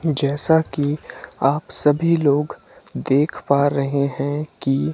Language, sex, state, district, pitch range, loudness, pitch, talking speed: Hindi, male, Himachal Pradesh, Shimla, 140-155 Hz, -20 LUFS, 145 Hz, 120 wpm